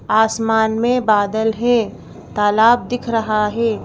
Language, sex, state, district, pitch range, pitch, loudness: Hindi, female, Madhya Pradesh, Bhopal, 215-235 Hz, 220 Hz, -16 LUFS